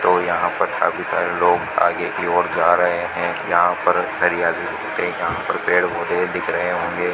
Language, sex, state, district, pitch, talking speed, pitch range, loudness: Hindi, male, Rajasthan, Bikaner, 90 Hz, 170 wpm, 85-90 Hz, -19 LUFS